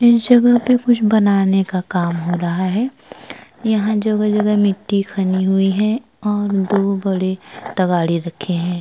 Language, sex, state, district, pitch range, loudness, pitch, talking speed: Hindi, female, Uttar Pradesh, Jyotiba Phule Nagar, 185-215 Hz, -17 LUFS, 200 Hz, 165 wpm